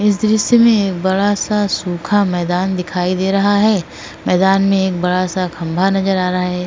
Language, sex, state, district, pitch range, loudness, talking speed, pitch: Hindi, female, Uttar Pradesh, Etah, 180-205 Hz, -15 LUFS, 200 wpm, 190 Hz